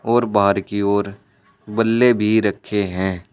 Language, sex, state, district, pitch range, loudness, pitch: Hindi, male, Uttar Pradesh, Saharanpur, 100-110 Hz, -18 LUFS, 105 Hz